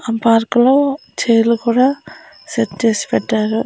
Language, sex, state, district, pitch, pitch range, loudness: Telugu, female, Andhra Pradesh, Annamaya, 235 Hz, 225-255 Hz, -15 LUFS